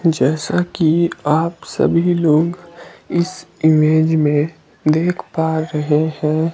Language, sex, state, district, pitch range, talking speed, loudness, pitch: Hindi, male, Himachal Pradesh, Shimla, 155-170 Hz, 110 wpm, -17 LUFS, 160 Hz